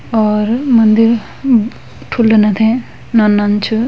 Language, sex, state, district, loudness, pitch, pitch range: Hindi, female, Uttarakhand, Uttarkashi, -12 LUFS, 220 Hz, 215-230 Hz